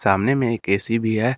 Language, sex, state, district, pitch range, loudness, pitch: Hindi, male, Jharkhand, Garhwa, 100-120 Hz, -18 LUFS, 115 Hz